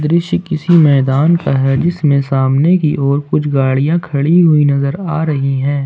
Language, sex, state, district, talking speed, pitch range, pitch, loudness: Hindi, male, Jharkhand, Ranchi, 175 wpm, 140-165 Hz, 150 Hz, -13 LUFS